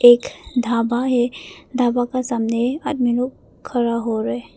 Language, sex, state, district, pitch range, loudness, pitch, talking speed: Hindi, female, Arunachal Pradesh, Papum Pare, 235-250 Hz, -20 LUFS, 240 Hz, 155 wpm